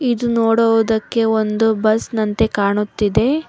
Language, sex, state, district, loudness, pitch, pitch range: Kannada, female, Karnataka, Bangalore, -17 LUFS, 225 Hz, 215-230 Hz